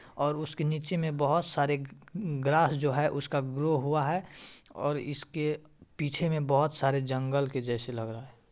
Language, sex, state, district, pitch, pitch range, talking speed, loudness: Hindi, male, Bihar, Madhepura, 145 Hz, 135-155 Hz, 170 wpm, -30 LUFS